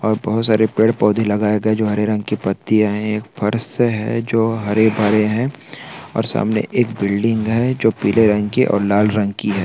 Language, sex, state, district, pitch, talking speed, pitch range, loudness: Hindi, male, Andhra Pradesh, Krishna, 110 Hz, 210 wpm, 105-115 Hz, -17 LUFS